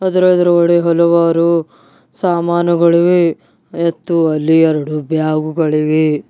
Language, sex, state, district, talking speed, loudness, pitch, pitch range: Kannada, male, Karnataka, Bidar, 85 wpm, -13 LUFS, 170 Hz, 155-170 Hz